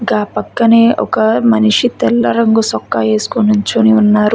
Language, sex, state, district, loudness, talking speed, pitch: Telugu, female, Telangana, Hyderabad, -12 LUFS, 140 wpm, 210 Hz